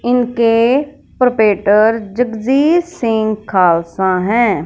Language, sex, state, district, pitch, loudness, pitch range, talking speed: Hindi, female, Punjab, Fazilka, 230 Hz, -14 LUFS, 210-250 Hz, 75 wpm